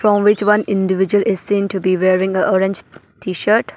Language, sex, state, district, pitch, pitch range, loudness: English, female, Arunachal Pradesh, Papum Pare, 195 Hz, 190-205 Hz, -16 LUFS